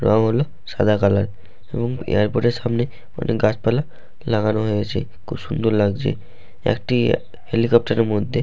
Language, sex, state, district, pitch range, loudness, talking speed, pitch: Bengali, male, West Bengal, Malda, 105-120 Hz, -21 LUFS, 135 wpm, 115 Hz